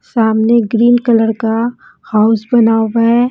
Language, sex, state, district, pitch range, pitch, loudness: Hindi, female, Punjab, Kapurthala, 225-235 Hz, 230 Hz, -12 LUFS